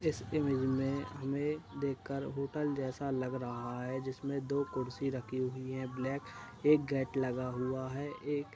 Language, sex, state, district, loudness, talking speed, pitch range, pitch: Hindi, male, Uttar Pradesh, Budaun, -36 LUFS, 170 wpm, 130-140 Hz, 135 Hz